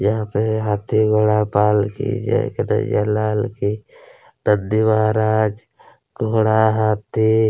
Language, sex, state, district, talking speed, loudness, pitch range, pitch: Hindi, male, Chhattisgarh, Kabirdham, 110 wpm, -19 LUFS, 105-110 Hz, 110 Hz